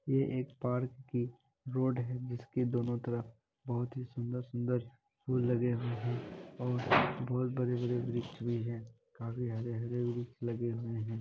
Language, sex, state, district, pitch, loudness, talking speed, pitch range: Hindi, male, Bihar, Kishanganj, 120 Hz, -36 LUFS, 155 wpm, 120-125 Hz